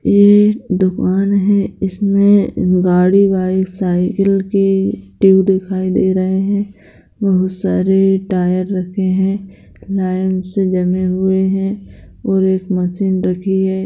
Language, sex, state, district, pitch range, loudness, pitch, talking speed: Hindi, female, Bihar, Jamui, 185-195 Hz, -15 LUFS, 190 Hz, 125 wpm